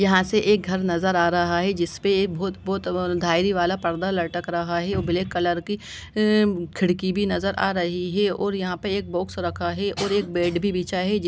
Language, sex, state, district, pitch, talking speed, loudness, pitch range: Hindi, female, Bihar, Lakhisarai, 185 Hz, 220 wpm, -23 LUFS, 175-200 Hz